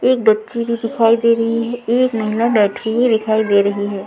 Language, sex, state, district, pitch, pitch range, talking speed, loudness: Hindi, female, Maharashtra, Mumbai Suburban, 225 Hz, 215-235 Hz, 220 wpm, -16 LUFS